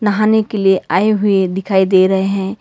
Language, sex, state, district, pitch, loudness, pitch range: Hindi, female, Karnataka, Bangalore, 195 Hz, -14 LUFS, 190-210 Hz